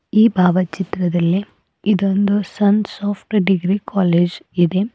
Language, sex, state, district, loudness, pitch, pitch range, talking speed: Kannada, female, Karnataka, Bidar, -17 LUFS, 195 Hz, 180-205 Hz, 95 wpm